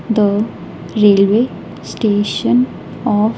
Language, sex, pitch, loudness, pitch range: English, female, 210 Hz, -15 LUFS, 205-225 Hz